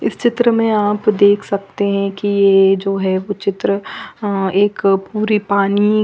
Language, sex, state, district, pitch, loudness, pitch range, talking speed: Hindi, female, Punjab, Fazilka, 200 Hz, -15 LUFS, 195-210 Hz, 170 wpm